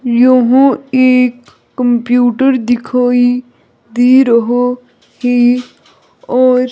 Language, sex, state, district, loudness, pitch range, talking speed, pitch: Hindi, female, Himachal Pradesh, Shimla, -11 LUFS, 245-255 Hz, 70 wpm, 250 Hz